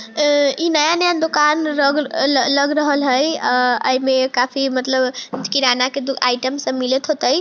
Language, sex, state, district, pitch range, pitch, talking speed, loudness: Maithili, female, Bihar, Sitamarhi, 255-300 Hz, 275 Hz, 155 wpm, -17 LUFS